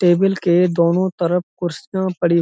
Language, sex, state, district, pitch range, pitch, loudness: Hindi, male, Uttar Pradesh, Budaun, 170-185 Hz, 175 Hz, -18 LUFS